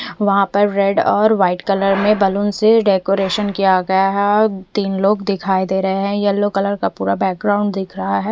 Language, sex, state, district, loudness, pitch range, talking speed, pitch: Hindi, female, Punjab, Fazilka, -16 LUFS, 190-205 Hz, 195 wpm, 200 Hz